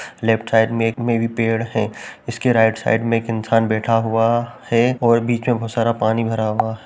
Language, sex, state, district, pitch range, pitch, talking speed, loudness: Hindi, male, Uttar Pradesh, Jalaun, 110-115 Hz, 115 Hz, 225 wpm, -18 LUFS